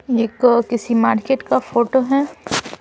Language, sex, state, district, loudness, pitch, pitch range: Hindi, female, Bihar, Patna, -17 LUFS, 240 Hz, 235-265 Hz